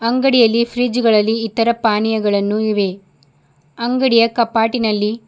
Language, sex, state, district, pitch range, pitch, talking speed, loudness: Kannada, female, Karnataka, Bidar, 210-235 Hz, 225 Hz, 90 wpm, -16 LUFS